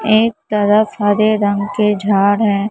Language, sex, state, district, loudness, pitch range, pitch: Hindi, male, Maharashtra, Mumbai Suburban, -14 LUFS, 205-215 Hz, 210 Hz